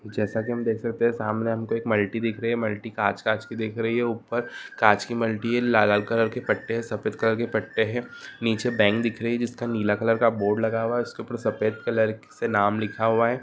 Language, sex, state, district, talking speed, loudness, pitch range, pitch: Marwari, male, Rajasthan, Nagaur, 235 wpm, -25 LUFS, 110-115 Hz, 115 Hz